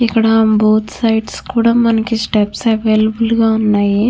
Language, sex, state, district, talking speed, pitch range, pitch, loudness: Telugu, female, Andhra Pradesh, Krishna, 130 wpm, 215-230 Hz, 220 Hz, -13 LUFS